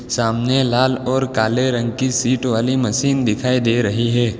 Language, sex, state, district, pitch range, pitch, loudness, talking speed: Hindi, male, Gujarat, Valsad, 120-130 Hz, 125 Hz, -18 LUFS, 175 wpm